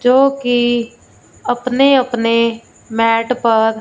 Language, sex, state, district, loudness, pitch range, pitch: Hindi, female, Punjab, Fazilka, -15 LUFS, 230-250 Hz, 240 Hz